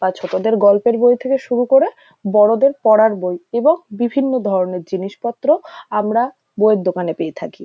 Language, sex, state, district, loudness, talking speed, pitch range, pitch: Bengali, female, West Bengal, North 24 Parganas, -16 LUFS, 150 wpm, 200-260 Hz, 225 Hz